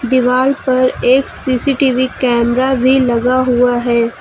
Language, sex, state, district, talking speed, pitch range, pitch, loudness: Hindi, female, Uttar Pradesh, Lucknow, 130 wpm, 245-260 Hz, 255 Hz, -13 LUFS